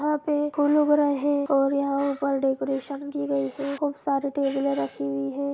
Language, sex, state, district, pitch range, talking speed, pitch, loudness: Hindi, female, Jharkhand, Jamtara, 275-290 Hz, 205 wpm, 280 Hz, -25 LUFS